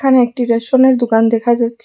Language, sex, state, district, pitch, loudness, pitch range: Bengali, female, Assam, Hailakandi, 240 Hz, -13 LUFS, 230-255 Hz